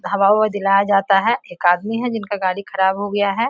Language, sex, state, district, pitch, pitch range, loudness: Hindi, female, Bihar, Samastipur, 200 Hz, 195-210 Hz, -18 LUFS